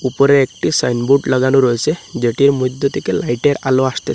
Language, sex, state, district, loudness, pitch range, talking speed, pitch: Bengali, male, Assam, Hailakandi, -15 LUFS, 125-140 Hz, 175 wpm, 130 Hz